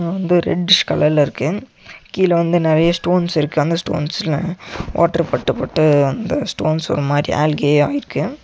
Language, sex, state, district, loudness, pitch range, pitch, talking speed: Tamil, male, Tamil Nadu, Nilgiris, -17 LUFS, 145-175 Hz, 160 Hz, 140 wpm